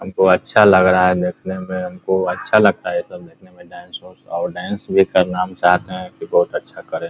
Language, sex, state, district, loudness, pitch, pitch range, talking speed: Hindi, male, Bihar, Muzaffarpur, -17 LUFS, 95 Hz, 90-110 Hz, 255 wpm